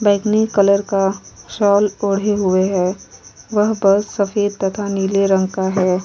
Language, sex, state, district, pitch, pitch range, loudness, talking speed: Hindi, female, Uttar Pradesh, Muzaffarnagar, 200 Hz, 195-205 Hz, -17 LUFS, 150 wpm